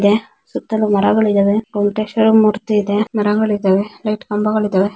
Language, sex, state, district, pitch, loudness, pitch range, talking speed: Kannada, female, Karnataka, Dakshina Kannada, 210 Hz, -16 LUFS, 205-215 Hz, 110 wpm